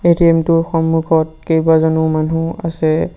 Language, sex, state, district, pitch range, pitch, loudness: Assamese, male, Assam, Sonitpur, 160-165 Hz, 160 Hz, -15 LUFS